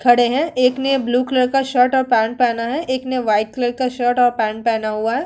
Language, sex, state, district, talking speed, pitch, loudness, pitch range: Hindi, female, Uttar Pradesh, Hamirpur, 260 wpm, 245 Hz, -18 LUFS, 235-260 Hz